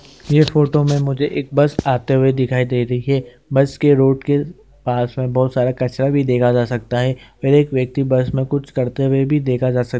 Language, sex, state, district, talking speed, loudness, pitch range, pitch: Hindi, male, Bihar, Gaya, 235 wpm, -17 LUFS, 125-145 Hz, 135 Hz